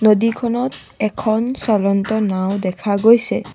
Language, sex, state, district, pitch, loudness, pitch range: Assamese, female, Assam, Sonitpur, 215 Hz, -17 LUFS, 200-235 Hz